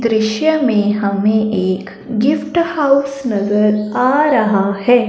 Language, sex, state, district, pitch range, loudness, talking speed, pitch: Hindi, female, Punjab, Fazilka, 205-275 Hz, -15 LUFS, 120 wpm, 220 Hz